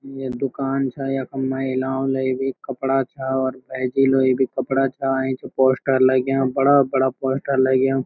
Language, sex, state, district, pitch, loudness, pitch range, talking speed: Garhwali, male, Uttarakhand, Uttarkashi, 135 Hz, -21 LUFS, 130-135 Hz, 165 wpm